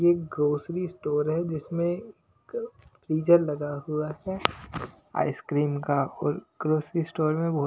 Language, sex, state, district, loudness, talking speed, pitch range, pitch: Hindi, male, Punjab, Pathankot, -28 LUFS, 125 wpm, 150-170 Hz, 155 Hz